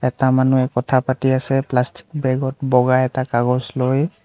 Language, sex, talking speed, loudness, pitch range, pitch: Assamese, male, 170 wpm, -18 LUFS, 125-135 Hz, 130 Hz